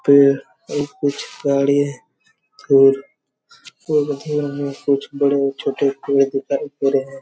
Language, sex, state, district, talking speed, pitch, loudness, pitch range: Hindi, male, Chhattisgarh, Raigarh, 125 wpm, 140 Hz, -19 LUFS, 140-145 Hz